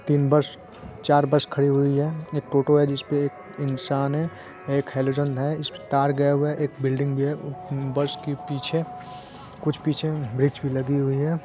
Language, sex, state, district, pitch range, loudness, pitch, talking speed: Hindi, male, Bihar, Saran, 140-150 Hz, -24 LUFS, 145 Hz, 185 wpm